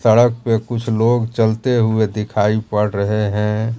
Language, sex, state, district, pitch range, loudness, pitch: Hindi, male, Bihar, Katihar, 105-115 Hz, -17 LUFS, 110 Hz